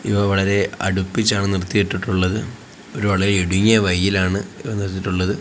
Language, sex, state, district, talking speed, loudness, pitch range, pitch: Malayalam, male, Kerala, Kozhikode, 100 wpm, -19 LUFS, 95-105 Hz, 100 Hz